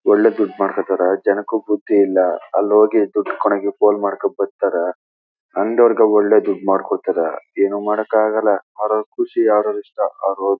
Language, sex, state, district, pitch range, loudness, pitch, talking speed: Kannada, male, Karnataka, Chamarajanagar, 100-115 Hz, -17 LUFS, 105 Hz, 130 wpm